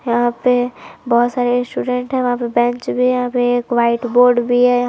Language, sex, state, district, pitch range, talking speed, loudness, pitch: Hindi, female, Jharkhand, Palamu, 240-250 Hz, 235 wpm, -16 LUFS, 245 Hz